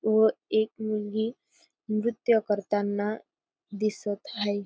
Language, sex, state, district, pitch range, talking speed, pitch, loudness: Marathi, female, Maharashtra, Dhule, 205-235 Hz, 90 wpm, 215 Hz, -28 LUFS